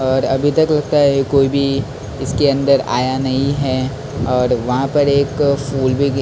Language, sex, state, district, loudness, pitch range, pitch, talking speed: Hindi, male, Maharashtra, Mumbai Suburban, -16 LUFS, 130-140 Hz, 135 Hz, 200 wpm